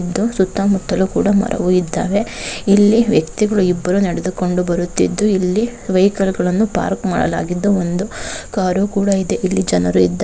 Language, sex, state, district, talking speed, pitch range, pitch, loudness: Kannada, female, Karnataka, Mysore, 130 wpm, 180-205 Hz, 190 Hz, -16 LUFS